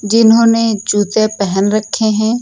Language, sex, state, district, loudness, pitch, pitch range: Hindi, female, Uttar Pradesh, Lucknow, -13 LUFS, 215 Hz, 205-225 Hz